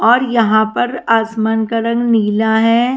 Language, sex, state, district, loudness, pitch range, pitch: Hindi, female, Haryana, Rohtak, -14 LUFS, 220-235 Hz, 225 Hz